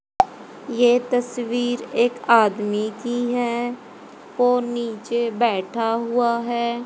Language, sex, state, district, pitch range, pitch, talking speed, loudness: Hindi, female, Haryana, Jhajjar, 230-245 Hz, 240 Hz, 95 wpm, -21 LUFS